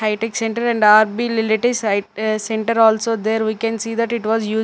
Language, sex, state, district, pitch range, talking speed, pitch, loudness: English, female, Punjab, Fazilka, 220-230 Hz, 170 wpm, 225 Hz, -18 LUFS